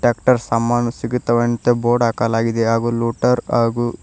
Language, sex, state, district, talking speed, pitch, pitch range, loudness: Kannada, male, Karnataka, Koppal, 120 wpm, 120 Hz, 115-120 Hz, -18 LUFS